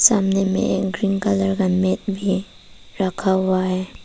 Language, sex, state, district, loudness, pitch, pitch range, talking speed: Hindi, female, Arunachal Pradesh, Papum Pare, -20 LUFS, 195 Hz, 185-195 Hz, 165 wpm